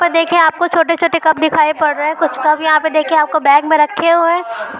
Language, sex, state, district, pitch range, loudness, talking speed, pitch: Hindi, female, Uttar Pradesh, Budaun, 305-335 Hz, -13 LUFS, 250 wpm, 315 Hz